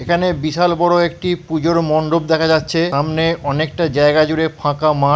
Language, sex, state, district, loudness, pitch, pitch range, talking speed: Bengali, female, West Bengal, Purulia, -16 LUFS, 160 Hz, 155-170 Hz, 175 wpm